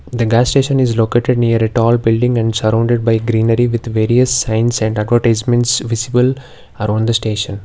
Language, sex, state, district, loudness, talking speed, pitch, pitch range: English, male, Karnataka, Bangalore, -14 LUFS, 175 wpm, 115 Hz, 110-120 Hz